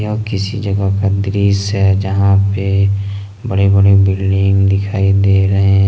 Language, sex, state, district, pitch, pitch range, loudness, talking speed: Hindi, male, Jharkhand, Ranchi, 100 Hz, 95-100 Hz, -13 LUFS, 145 wpm